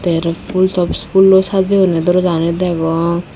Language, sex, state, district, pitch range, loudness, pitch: Chakma, female, Tripura, Unakoti, 170-190 Hz, -14 LUFS, 180 Hz